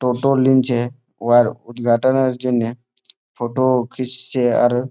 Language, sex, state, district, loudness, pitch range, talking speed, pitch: Bengali, male, West Bengal, Malda, -18 LUFS, 120-130 Hz, 110 wpm, 125 Hz